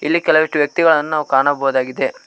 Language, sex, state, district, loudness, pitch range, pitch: Kannada, male, Karnataka, Koppal, -16 LUFS, 140-160 Hz, 150 Hz